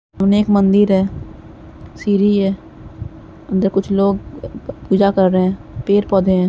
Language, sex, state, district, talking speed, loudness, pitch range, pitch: Hindi, male, Uttar Pradesh, Jalaun, 175 wpm, -16 LUFS, 185-200 Hz, 195 Hz